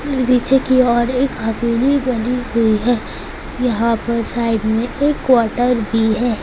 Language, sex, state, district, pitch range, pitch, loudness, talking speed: Hindi, female, Rajasthan, Nagaur, 230-255 Hz, 240 Hz, -16 LUFS, 140 wpm